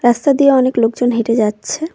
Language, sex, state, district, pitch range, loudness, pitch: Bengali, female, West Bengal, Cooch Behar, 230-275 Hz, -14 LUFS, 240 Hz